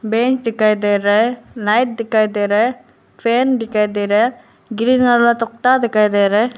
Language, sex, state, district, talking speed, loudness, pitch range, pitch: Hindi, female, Arunachal Pradesh, Lower Dibang Valley, 200 wpm, -16 LUFS, 210-240 Hz, 230 Hz